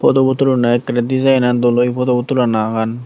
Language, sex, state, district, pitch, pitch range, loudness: Chakma, male, Tripura, Dhalai, 125 Hz, 120-130 Hz, -15 LUFS